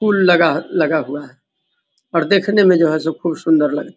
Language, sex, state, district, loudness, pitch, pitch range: Hindi, male, Bihar, Vaishali, -15 LUFS, 170 Hz, 160-200 Hz